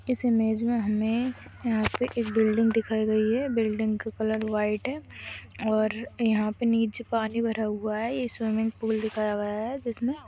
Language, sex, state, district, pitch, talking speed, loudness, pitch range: Hindi, female, Chhattisgarh, Kabirdham, 225 Hz, 185 wpm, -27 LUFS, 215-235 Hz